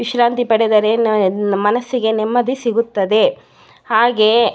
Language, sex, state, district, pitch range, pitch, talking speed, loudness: Kannada, female, Karnataka, Bellary, 215-240 Hz, 225 Hz, 105 wpm, -15 LUFS